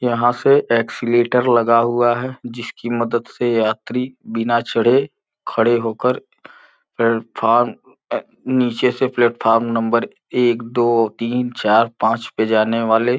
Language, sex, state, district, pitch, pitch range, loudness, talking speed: Hindi, male, Uttar Pradesh, Gorakhpur, 120 Hz, 115-120 Hz, -18 LUFS, 130 wpm